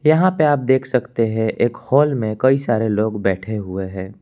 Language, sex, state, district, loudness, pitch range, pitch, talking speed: Hindi, male, Jharkhand, Palamu, -18 LUFS, 110-135 Hz, 115 Hz, 215 wpm